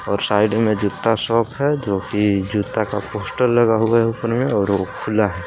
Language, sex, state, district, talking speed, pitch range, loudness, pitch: Hindi, male, Jharkhand, Palamu, 220 wpm, 105-115 Hz, -19 LUFS, 110 Hz